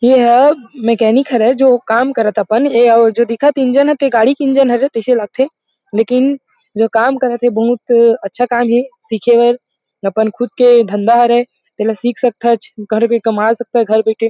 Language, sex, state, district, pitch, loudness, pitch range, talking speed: Chhattisgarhi, male, Chhattisgarh, Rajnandgaon, 240 Hz, -13 LUFS, 225-255 Hz, 185 wpm